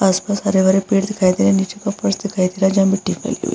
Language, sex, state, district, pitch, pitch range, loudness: Hindi, female, Bihar, Vaishali, 195 Hz, 190-200 Hz, -17 LUFS